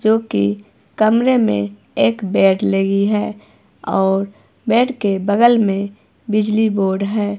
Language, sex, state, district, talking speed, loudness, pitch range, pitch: Hindi, female, Himachal Pradesh, Shimla, 120 wpm, -17 LUFS, 190-215 Hz, 200 Hz